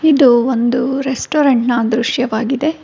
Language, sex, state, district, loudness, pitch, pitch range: Kannada, female, Karnataka, Bangalore, -14 LUFS, 255 Hz, 240-275 Hz